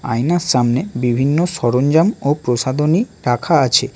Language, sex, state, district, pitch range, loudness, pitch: Bengali, male, West Bengal, Alipurduar, 125-160 Hz, -16 LUFS, 135 Hz